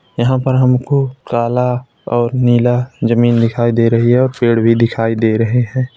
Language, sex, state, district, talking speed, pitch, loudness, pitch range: Hindi, male, Uttar Pradesh, Hamirpur, 180 wpm, 120 Hz, -14 LUFS, 115-125 Hz